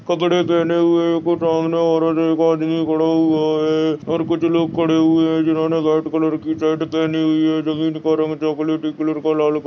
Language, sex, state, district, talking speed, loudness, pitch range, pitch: Hindi, male, Chhattisgarh, Bastar, 215 wpm, -18 LUFS, 155-165 Hz, 160 Hz